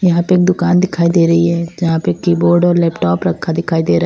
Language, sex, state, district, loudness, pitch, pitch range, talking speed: Hindi, female, Uttar Pradesh, Lalitpur, -13 LUFS, 170 Hz, 165-175 Hz, 265 wpm